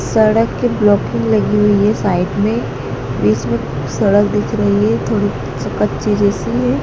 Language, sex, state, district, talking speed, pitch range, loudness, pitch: Hindi, female, Madhya Pradesh, Dhar, 160 wpm, 125-210 Hz, -15 LUFS, 200 Hz